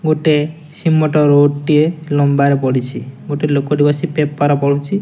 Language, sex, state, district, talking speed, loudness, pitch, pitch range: Odia, male, Odisha, Nuapada, 130 wpm, -15 LUFS, 150 Hz, 145-155 Hz